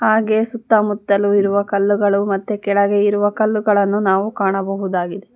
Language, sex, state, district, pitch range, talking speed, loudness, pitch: Kannada, female, Karnataka, Bangalore, 195-210 Hz, 110 wpm, -17 LUFS, 205 Hz